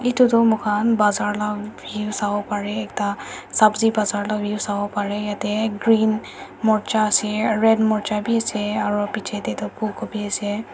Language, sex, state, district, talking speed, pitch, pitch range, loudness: Nagamese, female, Nagaland, Dimapur, 160 wpm, 210 Hz, 205-220 Hz, -21 LUFS